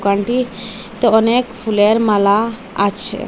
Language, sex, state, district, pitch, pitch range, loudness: Bengali, female, Assam, Hailakandi, 220 Hz, 205-230 Hz, -15 LUFS